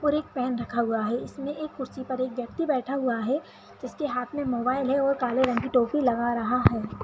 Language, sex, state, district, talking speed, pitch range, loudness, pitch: Kumaoni, male, Uttarakhand, Tehri Garhwal, 255 wpm, 245-275 Hz, -27 LUFS, 255 Hz